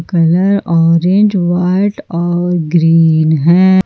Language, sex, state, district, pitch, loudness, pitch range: Hindi, female, Jharkhand, Ranchi, 175 Hz, -11 LUFS, 165-190 Hz